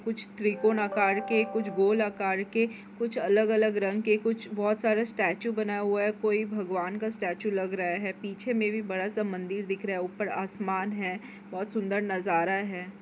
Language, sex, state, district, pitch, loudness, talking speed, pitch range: Hindi, female, Chhattisgarh, Korba, 205 Hz, -29 LUFS, 195 wpm, 195-215 Hz